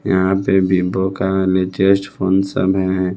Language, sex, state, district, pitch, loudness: Hindi, male, Bihar, West Champaran, 95 Hz, -16 LUFS